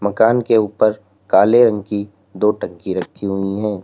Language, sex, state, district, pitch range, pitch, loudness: Hindi, male, Uttar Pradesh, Lalitpur, 100-110 Hz, 105 Hz, -17 LUFS